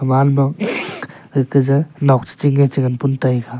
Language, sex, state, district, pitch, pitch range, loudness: Wancho, male, Arunachal Pradesh, Longding, 135 Hz, 130-140 Hz, -17 LUFS